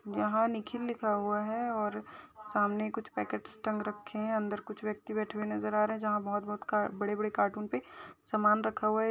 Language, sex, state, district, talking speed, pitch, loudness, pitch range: Hindi, female, Uttar Pradesh, Jalaun, 210 wpm, 215 Hz, -33 LUFS, 210-220 Hz